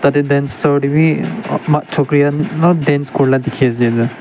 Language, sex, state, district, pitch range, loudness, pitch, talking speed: Nagamese, male, Nagaland, Dimapur, 135-150 Hz, -14 LUFS, 145 Hz, 155 wpm